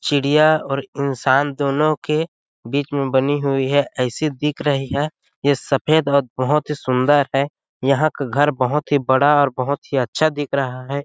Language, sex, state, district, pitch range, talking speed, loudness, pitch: Hindi, male, Chhattisgarh, Sarguja, 135-150 Hz, 180 wpm, -19 LUFS, 140 Hz